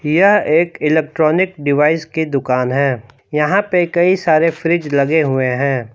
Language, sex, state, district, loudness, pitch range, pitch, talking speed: Hindi, male, Jharkhand, Palamu, -15 LUFS, 140-165 Hz, 155 Hz, 150 wpm